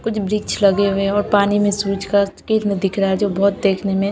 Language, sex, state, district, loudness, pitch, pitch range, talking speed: Hindi, female, Bihar, Katihar, -18 LUFS, 200 Hz, 195-205 Hz, 175 wpm